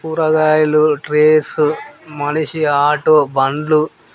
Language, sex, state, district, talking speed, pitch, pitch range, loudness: Telugu, male, Telangana, Nalgonda, 60 wpm, 155 Hz, 150-155 Hz, -14 LUFS